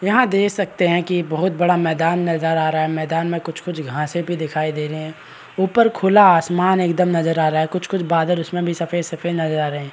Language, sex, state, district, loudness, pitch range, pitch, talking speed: Hindi, male, Bihar, Araria, -19 LUFS, 160-180 Hz, 170 Hz, 230 wpm